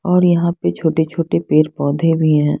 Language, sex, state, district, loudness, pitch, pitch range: Hindi, female, Punjab, Fazilka, -16 LUFS, 160 Hz, 150-170 Hz